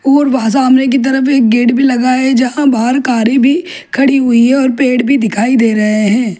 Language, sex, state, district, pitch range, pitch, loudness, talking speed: Hindi, female, Delhi, New Delhi, 240-270 Hz, 255 Hz, -10 LUFS, 225 wpm